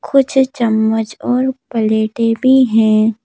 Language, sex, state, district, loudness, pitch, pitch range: Hindi, female, Madhya Pradesh, Bhopal, -14 LUFS, 230 Hz, 220-260 Hz